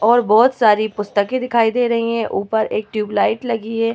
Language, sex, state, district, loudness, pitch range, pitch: Hindi, female, Bihar, Vaishali, -17 LUFS, 215-235 Hz, 225 Hz